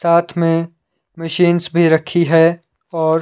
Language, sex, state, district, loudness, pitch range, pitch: Hindi, male, Himachal Pradesh, Shimla, -15 LUFS, 165-170 Hz, 170 Hz